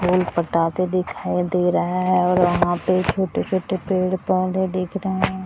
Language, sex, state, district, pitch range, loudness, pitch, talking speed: Hindi, female, Bihar, Gaya, 180-185 Hz, -21 LUFS, 185 Hz, 175 wpm